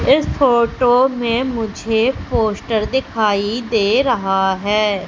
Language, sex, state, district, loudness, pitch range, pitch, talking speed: Hindi, female, Madhya Pradesh, Umaria, -17 LUFS, 210-245 Hz, 225 Hz, 105 wpm